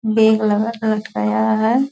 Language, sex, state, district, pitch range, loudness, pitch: Hindi, female, Bihar, Purnia, 210-225 Hz, -17 LUFS, 220 Hz